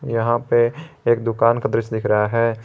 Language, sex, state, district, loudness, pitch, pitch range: Hindi, male, Jharkhand, Garhwa, -19 LUFS, 115 Hz, 115-120 Hz